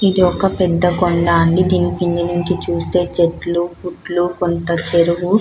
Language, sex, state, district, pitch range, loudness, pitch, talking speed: Telugu, female, Telangana, Karimnagar, 170-180 Hz, -16 LUFS, 175 Hz, 155 wpm